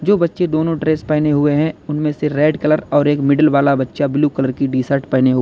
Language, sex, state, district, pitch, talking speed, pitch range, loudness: Hindi, male, Uttar Pradesh, Lalitpur, 150 Hz, 255 wpm, 140-155 Hz, -16 LUFS